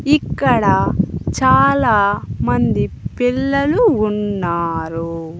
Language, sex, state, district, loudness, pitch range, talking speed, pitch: Telugu, female, Andhra Pradesh, Annamaya, -16 LUFS, 170-275 Hz, 55 wpm, 210 Hz